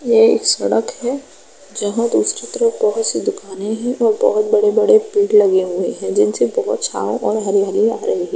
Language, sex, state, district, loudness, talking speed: Hindi, female, Uttar Pradesh, Jalaun, -16 LUFS, 185 wpm